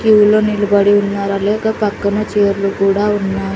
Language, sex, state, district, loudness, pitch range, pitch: Telugu, female, Andhra Pradesh, Sri Satya Sai, -14 LUFS, 200-210 Hz, 205 Hz